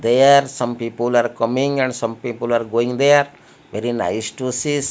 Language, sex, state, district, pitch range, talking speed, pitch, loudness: English, male, Odisha, Malkangiri, 115-135 Hz, 195 wpm, 120 Hz, -18 LUFS